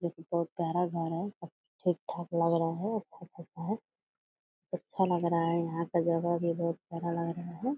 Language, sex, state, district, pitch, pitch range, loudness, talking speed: Hindi, female, Bihar, Purnia, 170 Hz, 170-175 Hz, -33 LUFS, 230 wpm